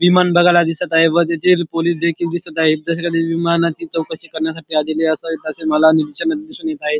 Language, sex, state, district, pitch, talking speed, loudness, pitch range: Marathi, male, Maharashtra, Dhule, 165 Hz, 190 wpm, -16 LUFS, 160-170 Hz